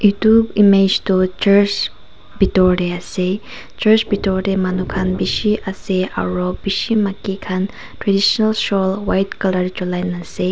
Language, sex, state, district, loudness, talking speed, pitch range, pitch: Nagamese, female, Nagaland, Kohima, -17 LUFS, 140 wpm, 185-205 Hz, 195 Hz